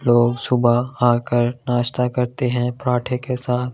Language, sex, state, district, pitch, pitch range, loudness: Hindi, male, Delhi, New Delhi, 125 Hz, 120-125 Hz, -20 LUFS